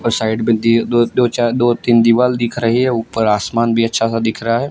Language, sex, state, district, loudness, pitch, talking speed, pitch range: Hindi, male, Gujarat, Gandhinagar, -15 LUFS, 115 Hz, 265 wpm, 115-120 Hz